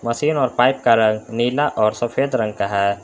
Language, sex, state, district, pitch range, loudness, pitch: Hindi, male, Jharkhand, Palamu, 110-130 Hz, -18 LUFS, 115 Hz